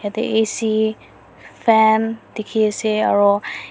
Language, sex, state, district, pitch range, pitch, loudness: Nagamese, female, Nagaland, Dimapur, 215-220 Hz, 220 Hz, -18 LUFS